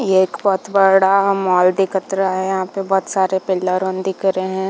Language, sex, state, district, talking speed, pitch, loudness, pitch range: Hindi, female, Chhattisgarh, Bilaspur, 215 wpm, 190 Hz, -17 LUFS, 185-195 Hz